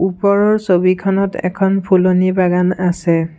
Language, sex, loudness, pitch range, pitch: Assamese, male, -14 LUFS, 180-195 Hz, 185 Hz